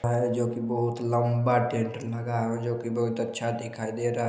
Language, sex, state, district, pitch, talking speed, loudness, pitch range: Hindi, male, Chhattisgarh, Balrampur, 120 Hz, 170 wpm, -28 LUFS, 115-120 Hz